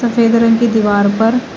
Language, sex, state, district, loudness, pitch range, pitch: Hindi, female, Uttar Pradesh, Shamli, -12 LUFS, 220-235 Hz, 230 Hz